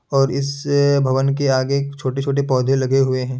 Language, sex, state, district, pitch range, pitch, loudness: Hindi, male, Bihar, Kishanganj, 130-140 Hz, 135 Hz, -18 LUFS